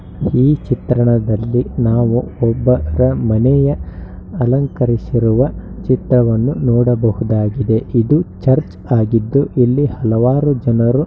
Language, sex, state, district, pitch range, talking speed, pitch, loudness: Kannada, male, Karnataka, Shimoga, 115-130 Hz, 80 wpm, 120 Hz, -15 LUFS